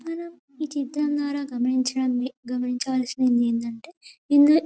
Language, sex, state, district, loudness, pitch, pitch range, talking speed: Telugu, female, Telangana, Karimnagar, -25 LUFS, 265 Hz, 250-295 Hz, 105 wpm